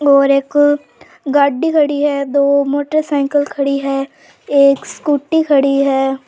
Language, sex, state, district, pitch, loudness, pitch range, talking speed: Rajasthani, female, Rajasthan, Churu, 280 Hz, -14 LUFS, 275-290 Hz, 125 wpm